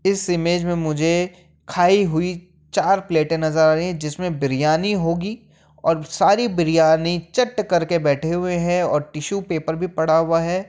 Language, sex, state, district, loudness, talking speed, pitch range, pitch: Hindi, male, Uttar Pradesh, Jyotiba Phule Nagar, -20 LUFS, 170 wpm, 160-180 Hz, 170 Hz